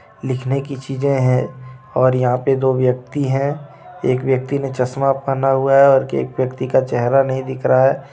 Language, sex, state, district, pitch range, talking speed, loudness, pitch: Hindi, male, Jharkhand, Deoghar, 130-135 Hz, 190 wpm, -17 LUFS, 130 Hz